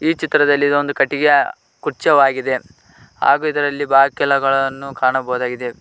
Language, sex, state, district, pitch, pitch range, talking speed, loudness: Kannada, male, Karnataka, Koppal, 140 Hz, 130-145 Hz, 95 wpm, -16 LUFS